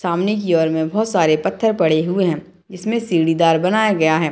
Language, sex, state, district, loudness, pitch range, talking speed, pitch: Hindi, female, Bihar, Madhepura, -17 LUFS, 160-195 Hz, 210 wpm, 170 Hz